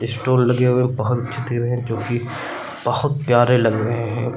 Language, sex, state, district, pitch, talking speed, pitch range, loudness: Hindi, male, Uttar Pradesh, Lucknow, 120 Hz, 165 wpm, 120-125 Hz, -20 LUFS